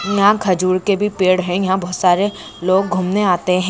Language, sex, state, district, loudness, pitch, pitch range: Hindi, female, Maharashtra, Sindhudurg, -16 LUFS, 185 Hz, 180-200 Hz